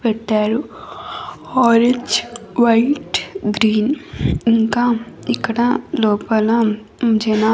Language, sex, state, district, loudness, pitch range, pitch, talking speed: Telugu, female, Andhra Pradesh, Annamaya, -17 LUFS, 220-250 Hz, 230 Hz, 70 wpm